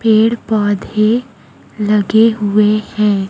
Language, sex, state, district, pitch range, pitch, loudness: Hindi, female, Chhattisgarh, Raipur, 210-225 Hz, 215 Hz, -14 LUFS